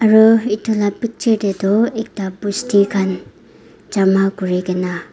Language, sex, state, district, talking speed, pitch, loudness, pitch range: Nagamese, female, Nagaland, Dimapur, 115 wpm, 200 Hz, -17 LUFS, 185-220 Hz